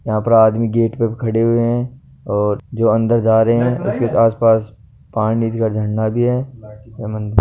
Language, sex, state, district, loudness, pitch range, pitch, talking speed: Hindi, male, Rajasthan, Nagaur, -16 LUFS, 110-115 Hz, 115 Hz, 180 wpm